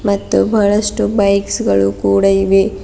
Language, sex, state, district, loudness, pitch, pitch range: Kannada, female, Karnataka, Bidar, -14 LUFS, 200 Hz, 195-205 Hz